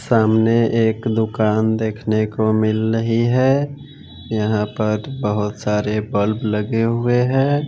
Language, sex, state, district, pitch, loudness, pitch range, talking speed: Hindi, male, Bihar, West Champaran, 110 Hz, -18 LUFS, 105-115 Hz, 125 wpm